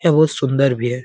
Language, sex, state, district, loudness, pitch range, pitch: Hindi, male, Bihar, Jamui, -17 LUFS, 125-155 Hz, 140 Hz